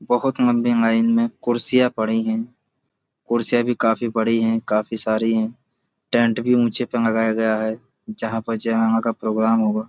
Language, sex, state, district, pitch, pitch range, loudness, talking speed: Hindi, male, Uttar Pradesh, Budaun, 115 Hz, 110-120 Hz, -20 LUFS, 170 wpm